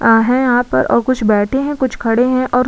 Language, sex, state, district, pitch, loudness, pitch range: Hindi, female, Uttar Pradesh, Budaun, 245 Hz, -14 LUFS, 230-255 Hz